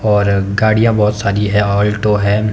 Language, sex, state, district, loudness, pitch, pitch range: Hindi, male, Himachal Pradesh, Shimla, -14 LUFS, 105 Hz, 100-105 Hz